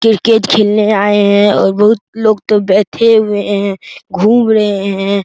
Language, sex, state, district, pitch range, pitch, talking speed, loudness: Hindi, male, Bihar, Araria, 200-220 Hz, 205 Hz, 160 wpm, -11 LUFS